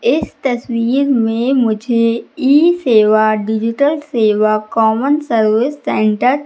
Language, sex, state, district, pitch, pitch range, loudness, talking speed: Hindi, female, Madhya Pradesh, Katni, 235 Hz, 220-275 Hz, -14 LUFS, 110 wpm